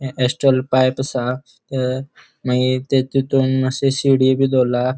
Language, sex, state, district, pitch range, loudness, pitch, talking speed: Konkani, male, Goa, North and South Goa, 130-135 Hz, -18 LUFS, 130 Hz, 145 wpm